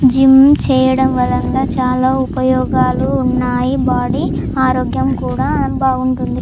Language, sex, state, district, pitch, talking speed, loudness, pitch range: Telugu, female, Andhra Pradesh, Chittoor, 260 Hz, 85 wpm, -14 LUFS, 255-265 Hz